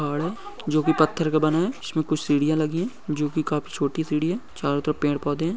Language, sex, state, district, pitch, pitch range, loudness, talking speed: Hindi, male, Bihar, Begusarai, 155 Hz, 150-165 Hz, -24 LUFS, 245 wpm